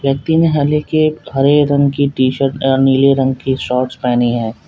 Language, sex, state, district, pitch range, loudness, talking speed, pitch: Hindi, male, Uttar Pradesh, Lalitpur, 130-145 Hz, -14 LUFS, 165 wpm, 135 Hz